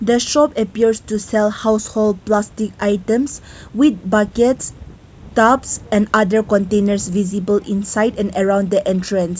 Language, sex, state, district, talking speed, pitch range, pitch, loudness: English, female, Nagaland, Kohima, 130 wpm, 205-225 Hz, 210 Hz, -17 LUFS